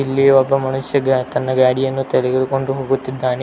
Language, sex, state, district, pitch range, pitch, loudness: Kannada, male, Karnataka, Belgaum, 130-135 Hz, 135 Hz, -17 LUFS